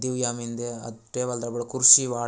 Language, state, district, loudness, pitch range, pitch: Gondi, Chhattisgarh, Sukma, -21 LUFS, 120-125 Hz, 120 Hz